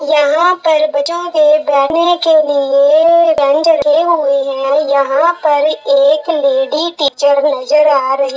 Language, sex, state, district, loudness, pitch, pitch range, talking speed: Hindi, female, Jharkhand, Sahebganj, -11 LUFS, 295 Hz, 280-320 Hz, 145 wpm